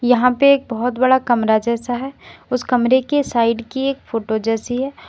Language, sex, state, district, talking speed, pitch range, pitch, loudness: Hindi, female, Uttar Pradesh, Lalitpur, 200 wpm, 230-260 Hz, 245 Hz, -18 LUFS